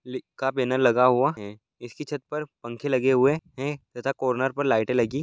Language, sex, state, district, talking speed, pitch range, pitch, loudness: Hindi, male, Bihar, Gopalganj, 185 wpm, 125-140 Hz, 130 Hz, -24 LUFS